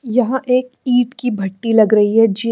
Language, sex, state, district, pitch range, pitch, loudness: Hindi, female, Haryana, Charkhi Dadri, 220-250 Hz, 235 Hz, -16 LUFS